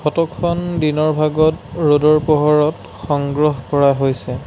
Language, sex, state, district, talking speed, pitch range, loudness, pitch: Assamese, male, Assam, Sonitpur, 105 wpm, 145-155 Hz, -16 LUFS, 150 Hz